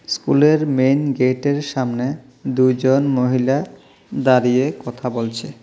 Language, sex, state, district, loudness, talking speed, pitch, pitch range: Bengali, male, Tripura, South Tripura, -18 LUFS, 130 wpm, 130 Hz, 125-140 Hz